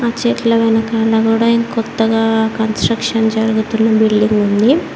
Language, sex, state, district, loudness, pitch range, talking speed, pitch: Telugu, female, Telangana, Mahabubabad, -14 LUFS, 220-230 Hz, 95 wpm, 225 Hz